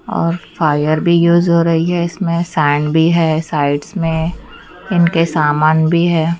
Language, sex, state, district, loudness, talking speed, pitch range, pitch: Hindi, female, Chandigarh, Chandigarh, -14 LUFS, 160 wpm, 155-170 Hz, 165 Hz